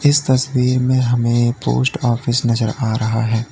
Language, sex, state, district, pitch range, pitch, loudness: Hindi, male, Uttar Pradesh, Lalitpur, 115-130 Hz, 120 Hz, -17 LUFS